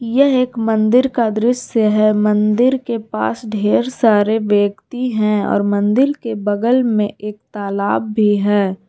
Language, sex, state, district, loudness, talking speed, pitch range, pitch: Hindi, female, Jharkhand, Garhwa, -16 LUFS, 150 wpm, 210-240 Hz, 215 Hz